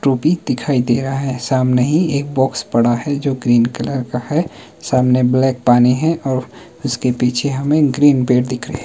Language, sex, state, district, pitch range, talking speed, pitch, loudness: Hindi, male, Himachal Pradesh, Shimla, 125-145 Hz, 190 wpm, 130 Hz, -16 LUFS